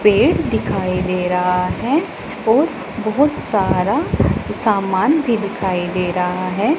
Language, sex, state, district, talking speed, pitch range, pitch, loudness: Hindi, female, Punjab, Pathankot, 125 wpm, 185-235 Hz, 195 Hz, -18 LUFS